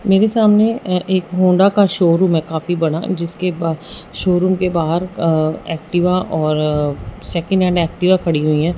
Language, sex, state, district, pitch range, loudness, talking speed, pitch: Hindi, male, Punjab, Fazilka, 160-185 Hz, -16 LUFS, 165 wpm, 175 Hz